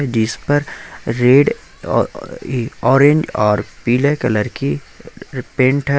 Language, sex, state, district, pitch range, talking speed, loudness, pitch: Hindi, male, Jharkhand, Ranchi, 110-140 Hz, 120 wpm, -16 LUFS, 125 Hz